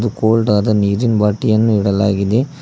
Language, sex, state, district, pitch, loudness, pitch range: Kannada, male, Karnataka, Koppal, 110 Hz, -15 LUFS, 105-115 Hz